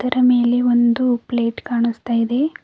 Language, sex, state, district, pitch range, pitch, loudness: Kannada, female, Karnataka, Bidar, 235-250 Hz, 240 Hz, -18 LUFS